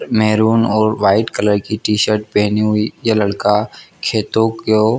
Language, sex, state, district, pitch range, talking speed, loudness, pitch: Hindi, male, Jharkhand, Jamtara, 105-110 Hz, 130 wpm, -15 LUFS, 110 Hz